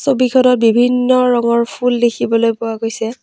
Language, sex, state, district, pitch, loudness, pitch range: Assamese, female, Assam, Kamrup Metropolitan, 240 Hz, -14 LUFS, 230-250 Hz